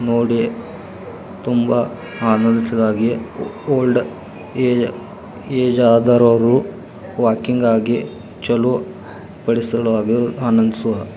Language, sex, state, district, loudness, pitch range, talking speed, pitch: Kannada, male, Karnataka, Belgaum, -17 LUFS, 115-125 Hz, 50 wpm, 120 Hz